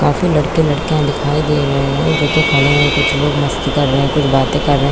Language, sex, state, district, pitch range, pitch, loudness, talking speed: Hindi, female, Chhattisgarh, Bilaspur, 140-150 Hz, 145 Hz, -14 LUFS, 270 wpm